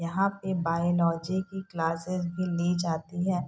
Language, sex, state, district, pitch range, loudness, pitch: Hindi, female, Bihar, Saharsa, 170-185 Hz, -29 LUFS, 175 Hz